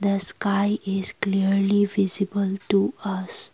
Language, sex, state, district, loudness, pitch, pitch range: English, female, Assam, Kamrup Metropolitan, -20 LUFS, 195 Hz, 195-200 Hz